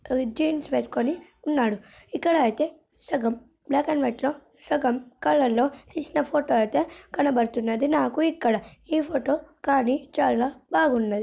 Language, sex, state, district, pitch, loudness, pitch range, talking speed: Telugu, female, Andhra Pradesh, Srikakulam, 280 Hz, -25 LUFS, 245-305 Hz, 135 wpm